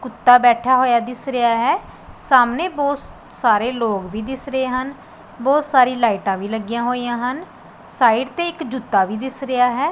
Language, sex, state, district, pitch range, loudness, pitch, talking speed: Punjabi, female, Punjab, Pathankot, 235-265 Hz, -18 LUFS, 250 Hz, 175 wpm